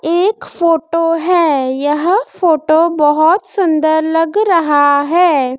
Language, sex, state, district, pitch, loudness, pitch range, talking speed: Hindi, female, Madhya Pradesh, Dhar, 330 Hz, -13 LUFS, 300-350 Hz, 105 wpm